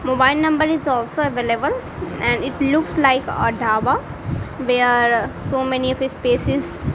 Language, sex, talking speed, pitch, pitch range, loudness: English, female, 145 wpm, 260 Hz, 245-290 Hz, -19 LUFS